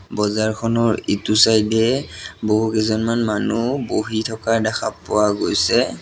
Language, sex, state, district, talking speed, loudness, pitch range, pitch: Assamese, male, Assam, Sonitpur, 110 wpm, -19 LUFS, 105-115 Hz, 110 Hz